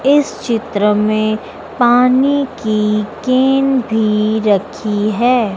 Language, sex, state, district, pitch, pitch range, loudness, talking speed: Hindi, female, Madhya Pradesh, Dhar, 220 Hz, 210-255 Hz, -14 LUFS, 85 wpm